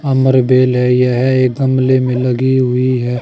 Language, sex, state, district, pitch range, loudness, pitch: Hindi, male, Haryana, Charkhi Dadri, 125-130 Hz, -13 LUFS, 130 Hz